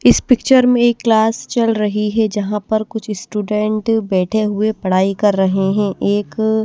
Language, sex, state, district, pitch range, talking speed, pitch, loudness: Hindi, female, Odisha, Nuapada, 205-220 Hz, 160 wpm, 215 Hz, -16 LUFS